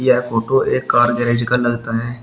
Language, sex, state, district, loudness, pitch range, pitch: Hindi, male, Uttar Pradesh, Shamli, -17 LUFS, 120-125 Hz, 120 Hz